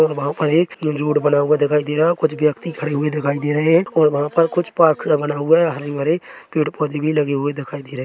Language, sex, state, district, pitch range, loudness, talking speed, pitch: Hindi, male, Chhattisgarh, Bilaspur, 145-160 Hz, -18 LUFS, 270 wpm, 150 Hz